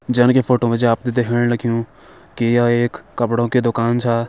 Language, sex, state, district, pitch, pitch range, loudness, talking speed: Hindi, male, Uttarakhand, Tehri Garhwal, 120 Hz, 115-120 Hz, -17 LUFS, 210 wpm